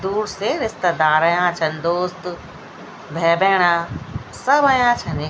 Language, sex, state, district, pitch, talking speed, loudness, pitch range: Garhwali, female, Uttarakhand, Tehri Garhwal, 175 Hz, 125 wpm, -18 LUFS, 165-195 Hz